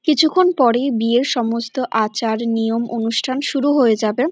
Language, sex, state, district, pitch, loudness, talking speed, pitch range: Bengali, female, West Bengal, North 24 Parganas, 240 Hz, -18 LUFS, 150 wpm, 225-275 Hz